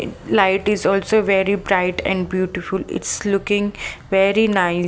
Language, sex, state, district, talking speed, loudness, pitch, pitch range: English, female, Maharashtra, Mumbai Suburban, 135 wpm, -19 LUFS, 195 Hz, 185-205 Hz